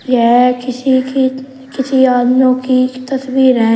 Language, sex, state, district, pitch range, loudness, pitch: Hindi, male, Uttar Pradesh, Shamli, 250-265 Hz, -13 LUFS, 255 Hz